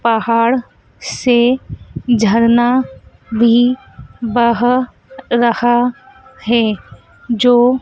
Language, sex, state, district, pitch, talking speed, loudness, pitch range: Hindi, female, Madhya Pradesh, Dhar, 240 Hz, 60 wpm, -14 LUFS, 230-250 Hz